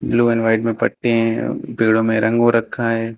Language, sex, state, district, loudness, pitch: Hindi, male, Uttar Pradesh, Lucknow, -17 LUFS, 115 Hz